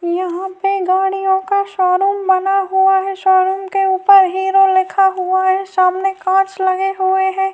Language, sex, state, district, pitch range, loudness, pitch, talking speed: Urdu, female, Bihar, Saharsa, 375-390 Hz, -15 LUFS, 380 Hz, 175 wpm